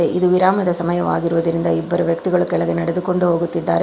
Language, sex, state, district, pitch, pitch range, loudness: Kannada, female, Karnataka, Bangalore, 175 Hz, 170-180 Hz, -17 LUFS